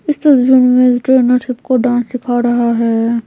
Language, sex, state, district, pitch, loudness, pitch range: Hindi, female, Bihar, Patna, 250 Hz, -12 LUFS, 240-255 Hz